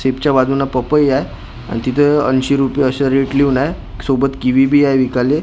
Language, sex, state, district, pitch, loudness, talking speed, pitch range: Marathi, male, Maharashtra, Gondia, 135 Hz, -15 LUFS, 185 wpm, 130-140 Hz